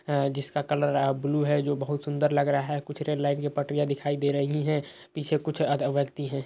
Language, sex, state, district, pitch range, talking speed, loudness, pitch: Hindi, male, Uttar Pradesh, Hamirpur, 140-150 Hz, 240 wpm, -27 LUFS, 145 Hz